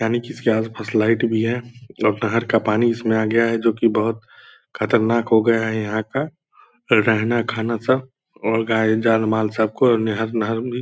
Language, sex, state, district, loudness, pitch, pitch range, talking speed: Hindi, male, Bihar, Purnia, -20 LUFS, 115 Hz, 110-115 Hz, 195 wpm